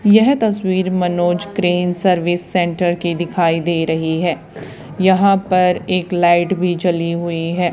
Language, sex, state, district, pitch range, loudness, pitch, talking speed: Hindi, female, Haryana, Charkhi Dadri, 170-185 Hz, -16 LUFS, 175 Hz, 145 wpm